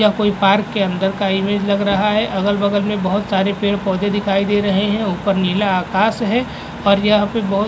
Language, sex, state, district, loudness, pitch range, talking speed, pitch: Hindi, male, Uttar Pradesh, Jalaun, -17 LUFS, 195-210 Hz, 225 wpm, 200 Hz